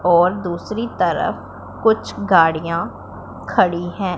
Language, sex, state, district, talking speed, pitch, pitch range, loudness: Hindi, female, Punjab, Pathankot, 100 wpm, 175 Hz, 165-200 Hz, -19 LUFS